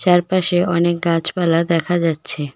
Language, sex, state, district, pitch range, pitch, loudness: Bengali, female, West Bengal, Cooch Behar, 165-175 Hz, 170 Hz, -17 LUFS